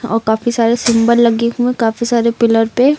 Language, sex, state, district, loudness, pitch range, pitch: Hindi, female, Uttar Pradesh, Lucknow, -13 LUFS, 225-240 Hz, 235 Hz